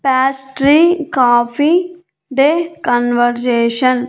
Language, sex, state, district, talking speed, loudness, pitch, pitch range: Telugu, female, Andhra Pradesh, Annamaya, 90 wpm, -14 LUFS, 270 Hz, 245-315 Hz